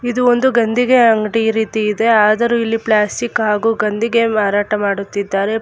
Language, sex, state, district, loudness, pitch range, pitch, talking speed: Kannada, female, Karnataka, Bangalore, -15 LUFS, 210-235 Hz, 220 Hz, 140 wpm